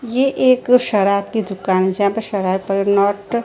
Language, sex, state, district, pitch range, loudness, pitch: Hindi, female, Gujarat, Gandhinagar, 195-235 Hz, -17 LUFS, 200 Hz